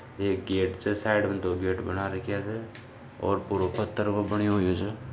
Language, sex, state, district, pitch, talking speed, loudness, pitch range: Marwari, male, Rajasthan, Nagaur, 100 Hz, 200 wpm, -28 LUFS, 95-110 Hz